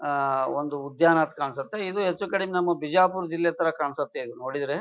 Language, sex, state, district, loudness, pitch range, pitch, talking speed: Kannada, male, Karnataka, Bijapur, -26 LUFS, 140-185 Hz, 165 Hz, 160 wpm